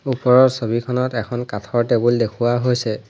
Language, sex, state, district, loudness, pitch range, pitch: Assamese, male, Assam, Hailakandi, -18 LUFS, 115-125 Hz, 120 Hz